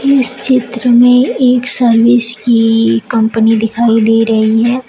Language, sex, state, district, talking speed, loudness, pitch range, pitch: Hindi, female, Uttar Pradesh, Shamli, 135 wpm, -10 LUFS, 225-250 Hz, 235 Hz